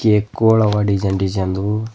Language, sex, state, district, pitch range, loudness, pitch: Kannada, male, Karnataka, Bidar, 95-110 Hz, -17 LUFS, 105 Hz